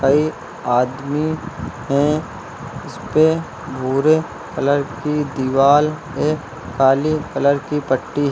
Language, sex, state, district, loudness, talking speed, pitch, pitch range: Hindi, male, Uttar Pradesh, Lucknow, -19 LUFS, 100 wpm, 145 Hz, 135-155 Hz